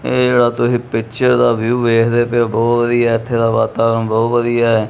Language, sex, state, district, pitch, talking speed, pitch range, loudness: Punjabi, male, Punjab, Kapurthala, 120 Hz, 220 wpm, 115-120 Hz, -14 LUFS